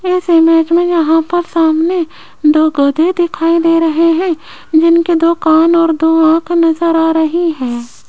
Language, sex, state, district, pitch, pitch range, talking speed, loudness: Hindi, female, Rajasthan, Jaipur, 330 Hz, 320-340 Hz, 165 wpm, -11 LUFS